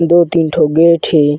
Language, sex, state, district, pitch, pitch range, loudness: Chhattisgarhi, male, Chhattisgarh, Bilaspur, 165 Hz, 155-170 Hz, -11 LUFS